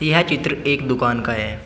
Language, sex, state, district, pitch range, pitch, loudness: Hindi, male, Uttar Pradesh, Shamli, 120-150 Hz, 135 Hz, -19 LUFS